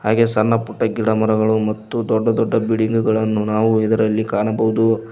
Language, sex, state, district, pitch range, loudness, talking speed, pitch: Kannada, male, Karnataka, Koppal, 110-115 Hz, -18 LUFS, 130 wpm, 110 Hz